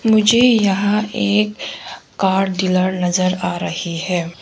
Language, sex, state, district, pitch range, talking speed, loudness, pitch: Hindi, female, Arunachal Pradesh, Longding, 180-210 Hz, 120 wpm, -17 LUFS, 190 Hz